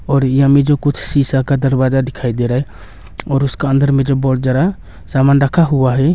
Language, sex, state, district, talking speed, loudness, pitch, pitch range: Hindi, male, Arunachal Pradesh, Longding, 215 wpm, -14 LUFS, 135 Hz, 130-140 Hz